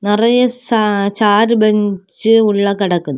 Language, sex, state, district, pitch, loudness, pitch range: Tamil, female, Tamil Nadu, Kanyakumari, 210 Hz, -13 LUFS, 200-225 Hz